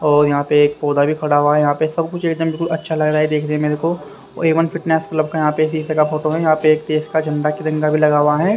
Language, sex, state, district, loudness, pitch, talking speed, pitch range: Hindi, male, Haryana, Rohtak, -17 LUFS, 155 Hz, 285 wpm, 150-160 Hz